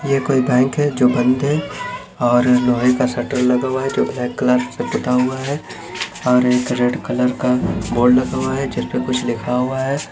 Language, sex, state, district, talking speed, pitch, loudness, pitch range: Hindi, male, Chhattisgarh, Bilaspur, 210 wpm, 125 Hz, -18 LUFS, 125-130 Hz